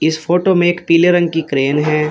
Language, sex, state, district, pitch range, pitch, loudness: Hindi, male, Uttar Pradesh, Shamli, 150-175 Hz, 165 Hz, -14 LUFS